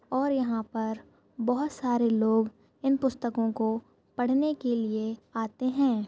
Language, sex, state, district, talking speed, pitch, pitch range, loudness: Hindi, female, Goa, North and South Goa, 140 wpm, 235 Hz, 225-260 Hz, -29 LUFS